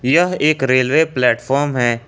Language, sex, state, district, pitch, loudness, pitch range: Hindi, male, Jharkhand, Ranchi, 130 Hz, -15 LUFS, 125-155 Hz